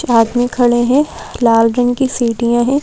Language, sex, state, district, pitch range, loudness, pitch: Hindi, female, Madhya Pradesh, Bhopal, 235-255 Hz, -14 LUFS, 245 Hz